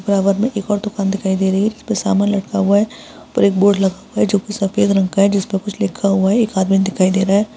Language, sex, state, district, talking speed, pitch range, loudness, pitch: Hindi, female, Chhattisgarh, Balrampur, 285 wpm, 195-205 Hz, -16 LUFS, 200 Hz